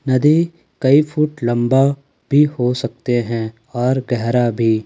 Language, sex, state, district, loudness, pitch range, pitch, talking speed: Hindi, male, Jharkhand, Ranchi, -17 LUFS, 120-140 Hz, 125 Hz, 135 wpm